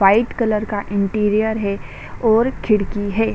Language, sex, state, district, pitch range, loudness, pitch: Hindi, female, Bihar, Saran, 200-220 Hz, -19 LUFS, 210 Hz